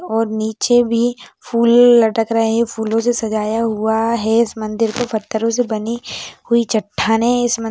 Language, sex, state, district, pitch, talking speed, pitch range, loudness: Hindi, female, Maharashtra, Aurangabad, 225 Hz, 170 wpm, 220-235 Hz, -16 LUFS